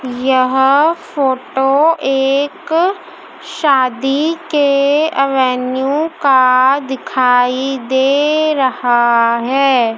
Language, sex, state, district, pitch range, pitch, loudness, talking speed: Hindi, female, Madhya Pradesh, Dhar, 255-295 Hz, 270 Hz, -13 LUFS, 65 wpm